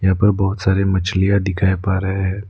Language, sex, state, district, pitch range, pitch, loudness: Hindi, male, Arunachal Pradesh, Lower Dibang Valley, 95-100 Hz, 95 Hz, -18 LUFS